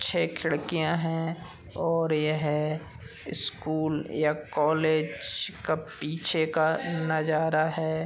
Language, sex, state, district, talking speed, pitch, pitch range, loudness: Hindi, male, Uttar Pradesh, Gorakhpur, 95 wpm, 155 Hz, 155-160 Hz, -28 LUFS